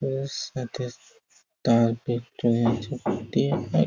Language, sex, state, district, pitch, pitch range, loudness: Bengali, male, West Bengal, Jhargram, 120 Hz, 115-135 Hz, -26 LUFS